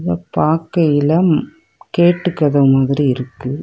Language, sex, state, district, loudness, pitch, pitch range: Tamil, female, Tamil Nadu, Kanyakumari, -15 LUFS, 150 Hz, 135-170 Hz